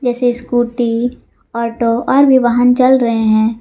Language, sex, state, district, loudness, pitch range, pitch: Hindi, female, Jharkhand, Garhwa, -13 LUFS, 230-250 Hz, 240 Hz